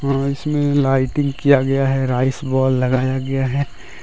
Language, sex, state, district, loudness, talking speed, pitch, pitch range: Hindi, male, Jharkhand, Deoghar, -18 LUFS, 150 wpm, 135 Hz, 130-140 Hz